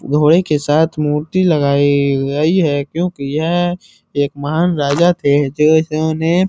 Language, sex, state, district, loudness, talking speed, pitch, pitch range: Hindi, male, Uttar Pradesh, Muzaffarnagar, -15 LUFS, 150 wpm, 155 Hz, 145-170 Hz